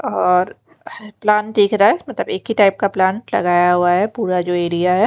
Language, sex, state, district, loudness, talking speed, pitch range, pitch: Hindi, female, Bihar, Kaimur, -16 LUFS, 215 wpm, 180-210 Hz, 195 Hz